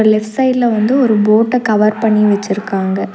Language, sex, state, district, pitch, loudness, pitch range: Tamil, female, Tamil Nadu, Nilgiris, 215 Hz, -13 LUFS, 210-235 Hz